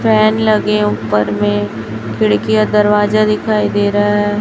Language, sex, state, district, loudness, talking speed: Hindi, male, Chhattisgarh, Raipur, -14 LUFS, 135 wpm